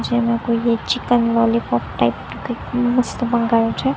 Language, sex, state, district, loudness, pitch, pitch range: Gujarati, female, Gujarat, Gandhinagar, -19 LUFS, 235 Hz, 230-240 Hz